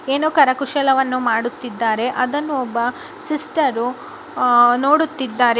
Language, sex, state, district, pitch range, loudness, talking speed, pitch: Kannada, female, Karnataka, Bijapur, 245-300 Hz, -18 LUFS, 85 wpm, 265 Hz